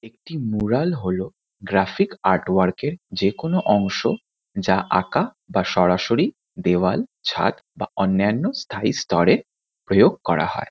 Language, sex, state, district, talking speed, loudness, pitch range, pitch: Bengali, male, West Bengal, Kolkata, 125 wpm, -21 LUFS, 95-120 Hz, 100 Hz